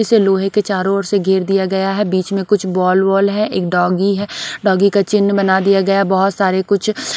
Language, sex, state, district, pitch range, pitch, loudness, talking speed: Hindi, female, Odisha, Sambalpur, 190-200 Hz, 195 Hz, -15 LUFS, 235 wpm